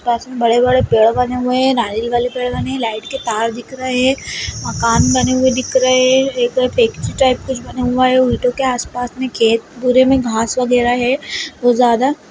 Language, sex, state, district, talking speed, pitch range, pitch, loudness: Hindi, female, Bihar, Gaya, 200 wpm, 240-260 Hz, 250 Hz, -15 LUFS